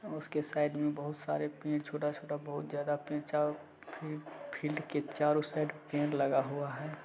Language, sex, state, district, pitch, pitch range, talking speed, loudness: Hindi, male, Bihar, Madhepura, 150 Hz, 145-150 Hz, 145 wpm, -36 LUFS